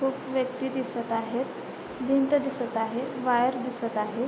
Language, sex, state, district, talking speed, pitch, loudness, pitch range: Marathi, female, Maharashtra, Sindhudurg, 140 wpm, 255 Hz, -28 LUFS, 235-265 Hz